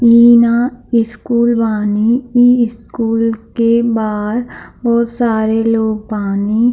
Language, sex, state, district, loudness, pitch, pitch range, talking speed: Hindi, female, Bihar, East Champaran, -14 LUFS, 230 Hz, 220-235 Hz, 105 wpm